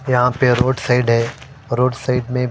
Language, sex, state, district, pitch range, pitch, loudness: Hindi, female, Punjab, Fazilka, 125-130 Hz, 125 Hz, -17 LUFS